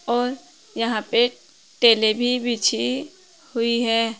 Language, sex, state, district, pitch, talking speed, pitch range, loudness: Hindi, female, Uttar Pradesh, Saharanpur, 240 Hz, 115 wpm, 230-270 Hz, -21 LUFS